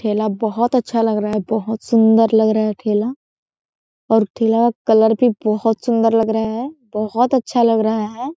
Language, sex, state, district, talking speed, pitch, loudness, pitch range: Hindi, female, Chhattisgarh, Korba, 195 wpm, 225 Hz, -17 LUFS, 220-235 Hz